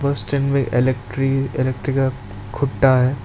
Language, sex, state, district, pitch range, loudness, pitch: Hindi, male, West Bengal, Alipurduar, 125-135 Hz, -19 LUFS, 130 Hz